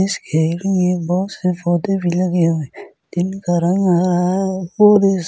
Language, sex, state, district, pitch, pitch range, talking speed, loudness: Hindi, male, Delhi, New Delhi, 180 Hz, 175-190 Hz, 145 wpm, -17 LUFS